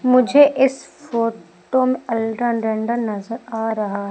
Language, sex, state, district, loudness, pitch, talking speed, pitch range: Hindi, female, Madhya Pradesh, Umaria, -19 LUFS, 230 Hz, 130 wpm, 220-255 Hz